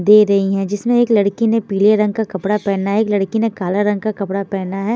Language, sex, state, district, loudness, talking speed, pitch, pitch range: Hindi, female, Bihar, Patna, -16 LUFS, 265 wpm, 205 Hz, 195-215 Hz